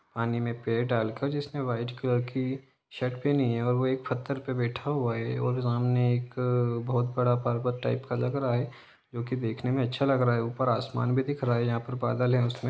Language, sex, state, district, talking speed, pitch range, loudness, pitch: Hindi, male, Jharkhand, Sahebganj, 235 wpm, 120-130 Hz, -29 LUFS, 125 Hz